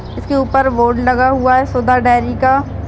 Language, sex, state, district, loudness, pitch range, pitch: Hindi, female, Bihar, Bhagalpur, -13 LUFS, 250-265 Hz, 255 Hz